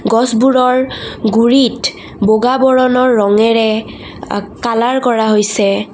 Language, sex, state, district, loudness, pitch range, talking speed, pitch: Assamese, female, Assam, Kamrup Metropolitan, -12 LUFS, 220-255 Hz, 90 wpm, 235 Hz